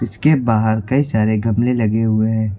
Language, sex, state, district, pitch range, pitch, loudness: Hindi, male, Uttar Pradesh, Lucknow, 110-120 Hz, 110 Hz, -17 LUFS